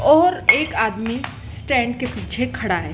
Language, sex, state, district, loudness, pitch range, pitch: Hindi, female, Madhya Pradesh, Dhar, -19 LUFS, 230-295 Hz, 245 Hz